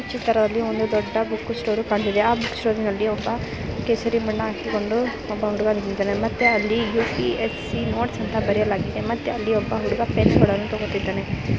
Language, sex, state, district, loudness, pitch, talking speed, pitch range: Kannada, female, Karnataka, Mysore, -22 LUFS, 220 Hz, 155 wpm, 210-230 Hz